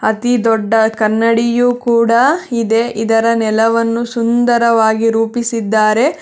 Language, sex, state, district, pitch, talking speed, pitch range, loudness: Kannada, female, Karnataka, Bangalore, 230 Hz, 85 wpm, 225-235 Hz, -13 LUFS